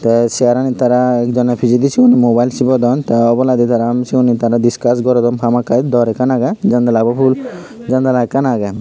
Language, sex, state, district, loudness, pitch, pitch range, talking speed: Chakma, male, Tripura, Unakoti, -13 LUFS, 120 Hz, 120-130 Hz, 170 wpm